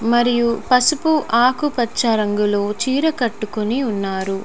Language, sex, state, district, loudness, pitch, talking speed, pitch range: Telugu, female, Telangana, Nalgonda, -18 LUFS, 235 Hz, 95 wpm, 210-255 Hz